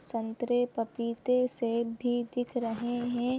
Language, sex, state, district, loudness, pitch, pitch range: Hindi, female, Chhattisgarh, Bilaspur, -31 LUFS, 240 Hz, 235-245 Hz